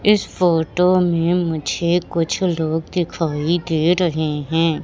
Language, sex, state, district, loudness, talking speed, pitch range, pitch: Hindi, female, Madhya Pradesh, Katni, -19 LUFS, 125 wpm, 160-180 Hz, 170 Hz